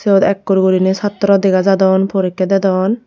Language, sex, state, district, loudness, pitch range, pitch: Chakma, female, Tripura, Unakoti, -13 LUFS, 190-200 Hz, 195 Hz